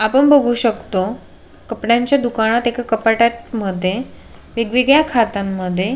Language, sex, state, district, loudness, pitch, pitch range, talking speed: Marathi, female, Maharashtra, Solapur, -16 LUFS, 230 Hz, 215-245 Hz, 120 wpm